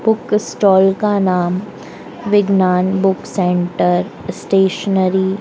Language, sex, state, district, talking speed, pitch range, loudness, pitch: Hindi, female, Madhya Pradesh, Dhar, 100 wpm, 185-200 Hz, -15 LUFS, 190 Hz